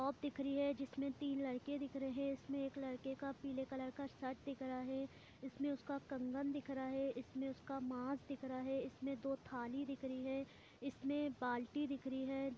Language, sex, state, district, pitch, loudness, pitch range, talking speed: Hindi, female, Bihar, Muzaffarpur, 270 Hz, -45 LUFS, 265-275 Hz, 210 wpm